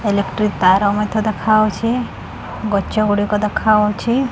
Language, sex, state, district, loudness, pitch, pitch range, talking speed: Odia, female, Odisha, Khordha, -17 LUFS, 210 Hz, 205-215 Hz, 85 wpm